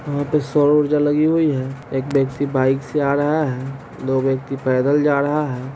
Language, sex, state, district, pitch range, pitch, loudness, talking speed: Hindi, male, Bihar, Sitamarhi, 135-150 Hz, 140 Hz, -19 LUFS, 210 wpm